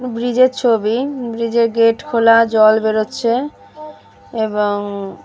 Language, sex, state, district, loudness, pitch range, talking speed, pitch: Bengali, female, West Bengal, Jalpaiguri, -15 LUFS, 210-235 Hz, 115 wpm, 230 Hz